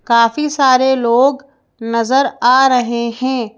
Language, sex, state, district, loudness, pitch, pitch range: Hindi, female, Madhya Pradesh, Bhopal, -13 LUFS, 255 Hz, 235-270 Hz